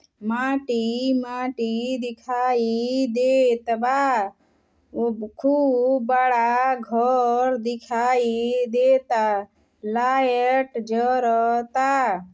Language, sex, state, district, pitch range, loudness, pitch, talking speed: Bhojpuri, female, Uttar Pradesh, Deoria, 235-255 Hz, -22 LUFS, 245 Hz, 65 wpm